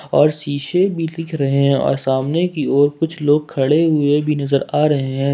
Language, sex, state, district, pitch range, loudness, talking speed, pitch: Hindi, male, Jharkhand, Ranchi, 140-160 Hz, -17 LUFS, 190 wpm, 145 Hz